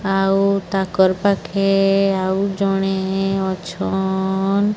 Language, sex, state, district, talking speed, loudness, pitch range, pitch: Odia, male, Odisha, Sambalpur, 75 wpm, -18 LUFS, 190-195 Hz, 195 Hz